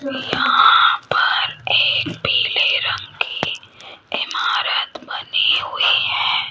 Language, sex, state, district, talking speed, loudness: Hindi, female, Rajasthan, Jaipur, 90 wpm, -17 LUFS